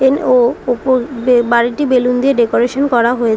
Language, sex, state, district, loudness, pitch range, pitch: Bengali, female, West Bengal, Dakshin Dinajpur, -13 LUFS, 240-255 Hz, 245 Hz